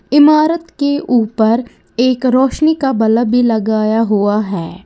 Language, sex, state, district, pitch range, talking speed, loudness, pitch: Hindi, female, Uttar Pradesh, Lalitpur, 220-285 Hz, 135 wpm, -13 LUFS, 240 Hz